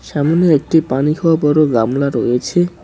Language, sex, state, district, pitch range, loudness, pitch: Bengali, male, West Bengal, Cooch Behar, 135-165 Hz, -14 LUFS, 150 Hz